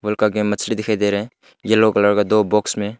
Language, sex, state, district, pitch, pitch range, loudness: Hindi, male, Arunachal Pradesh, Longding, 105 Hz, 105-110 Hz, -18 LUFS